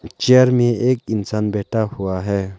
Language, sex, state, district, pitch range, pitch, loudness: Hindi, male, Arunachal Pradesh, Lower Dibang Valley, 100-120 Hz, 110 Hz, -18 LUFS